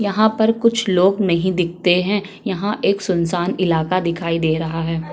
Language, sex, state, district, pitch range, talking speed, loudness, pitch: Hindi, female, Chhattisgarh, Kabirdham, 170-200 Hz, 175 wpm, -18 LUFS, 185 Hz